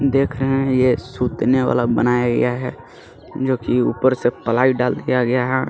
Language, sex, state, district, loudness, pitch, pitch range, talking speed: Hindi, male, Jharkhand, Garhwa, -18 LUFS, 125 Hz, 125-130 Hz, 190 wpm